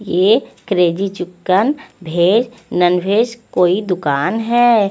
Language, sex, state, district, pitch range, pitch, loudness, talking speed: Hindi, female, Chandigarh, Chandigarh, 180-230 Hz, 185 Hz, -16 LUFS, 100 wpm